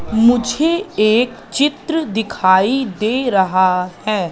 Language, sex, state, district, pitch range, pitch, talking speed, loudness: Hindi, female, Madhya Pradesh, Katni, 190-265 Hz, 225 Hz, 95 wpm, -16 LUFS